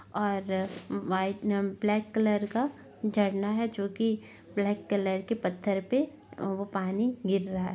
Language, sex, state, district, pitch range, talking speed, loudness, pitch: Hindi, female, Bihar, Sitamarhi, 195-215 Hz, 160 wpm, -30 LUFS, 200 Hz